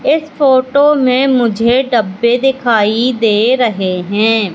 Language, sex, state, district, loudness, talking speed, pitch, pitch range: Hindi, female, Madhya Pradesh, Katni, -12 LUFS, 120 wpm, 240 Hz, 220-265 Hz